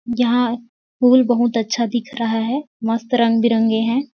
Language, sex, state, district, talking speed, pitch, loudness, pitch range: Hindi, female, Chhattisgarh, Sarguja, 145 wpm, 235 Hz, -18 LUFS, 230-245 Hz